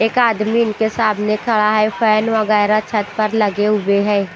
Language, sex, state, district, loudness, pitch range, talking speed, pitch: Hindi, female, Bihar, Patna, -16 LUFS, 210-220 Hz, 180 wpm, 215 Hz